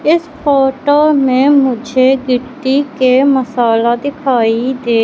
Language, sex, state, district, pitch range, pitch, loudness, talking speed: Hindi, female, Madhya Pradesh, Katni, 250-280 Hz, 260 Hz, -12 LUFS, 105 wpm